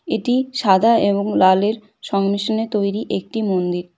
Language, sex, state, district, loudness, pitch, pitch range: Bengali, female, West Bengal, Cooch Behar, -18 LUFS, 205 Hz, 195-225 Hz